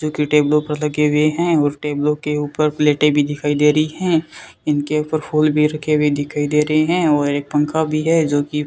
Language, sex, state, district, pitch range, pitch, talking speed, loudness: Hindi, male, Rajasthan, Bikaner, 150-155 Hz, 150 Hz, 240 wpm, -17 LUFS